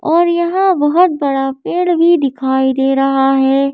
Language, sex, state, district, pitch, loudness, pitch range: Hindi, female, Madhya Pradesh, Bhopal, 280 Hz, -13 LUFS, 270-345 Hz